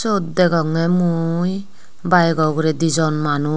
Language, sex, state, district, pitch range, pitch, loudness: Chakma, female, Tripura, Unakoti, 160-180 Hz, 165 Hz, -17 LUFS